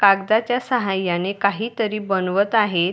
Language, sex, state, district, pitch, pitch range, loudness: Marathi, female, Maharashtra, Dhule, 200 Hz, 190-220 Hz, -20 LUFS